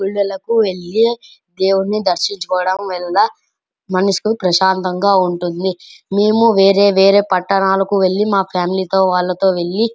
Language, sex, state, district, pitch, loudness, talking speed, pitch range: Telugu, male, Andhra Pradesh, Anantapur, 195 Hz, -15 LUFS, 115 wpm, 185-200 Hz